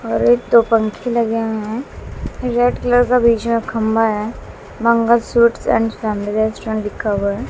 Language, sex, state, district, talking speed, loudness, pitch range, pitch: Hindi, female, Bihar, West Champaran, 170 wpm, -17 LUFS, 220-235 Hz, 225 Hz